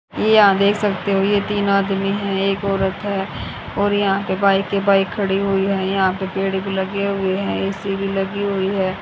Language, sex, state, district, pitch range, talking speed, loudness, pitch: Hindi, female, Haryana, Jhajjar, 195-200 Hz, 215 wpm, -19 LUFS, 195 Hz